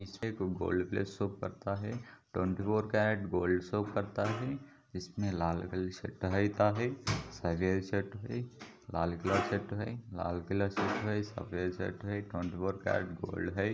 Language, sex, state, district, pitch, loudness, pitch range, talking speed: Hindi, male, Maharashtra, Solapur, 100 Hz, -35 LUFS, 90-105 Hz, 120 wpm